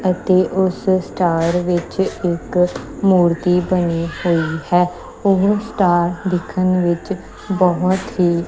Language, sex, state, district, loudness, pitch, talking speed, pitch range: Punjabi, female, Punjab, Kapurthala, -17 LUFS, 180 Hz, 115 wpm, 175-190 Hz